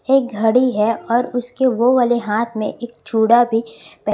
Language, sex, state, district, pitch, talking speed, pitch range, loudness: Hindi, female, Chhattisgarh, Raipur, 235 Hz, 190 wpm, 220-245 Hz, -17 LUFS